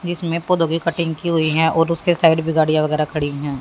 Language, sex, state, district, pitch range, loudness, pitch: Hindi, female, Haryana, Jhajjar, 155-170 Hz, -18 LUFS, 160 Hz